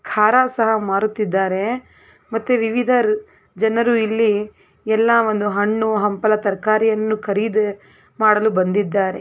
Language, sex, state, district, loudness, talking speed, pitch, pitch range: Kannada, female, Karnataka, Belgaum, -18 LUFS, 100 wpm, 215 Hz, 205-225 Hz